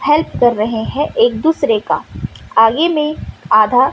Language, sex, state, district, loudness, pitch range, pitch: Hindi, female, Madhya Pradesh, Umaria, -14 LUFS, 225-300 Hz, 255 Hz